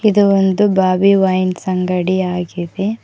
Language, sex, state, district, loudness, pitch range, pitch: Kannada, female, Karnataka, Koppal, -15 LUFS, 185-200 Hz, 190 Hz